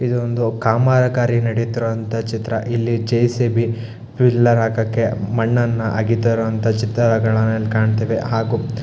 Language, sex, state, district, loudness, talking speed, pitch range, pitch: Kannada, male, Karnataka, Shimoga, -18 LUFS, 110 wpm, 110-120 Hz, 115 Hz